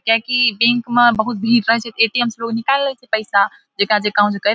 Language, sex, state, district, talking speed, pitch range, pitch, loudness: Maithili, female, Bihar, Samastipur, 235 wpm, 215-240 Hz, 230 Hz, -16 LUFS